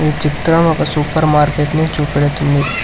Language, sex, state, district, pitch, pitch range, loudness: Telugu, male, Telangana, Hyderabad, 150 Hz, 145-155 Hz, -14 LUFS